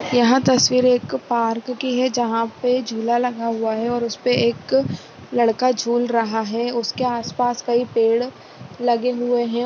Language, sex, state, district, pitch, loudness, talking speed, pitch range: Hindi, female, Bihar, Sitamarhi, 240 Hz, -20 LUFS, 170 wpm, 230-250 Hz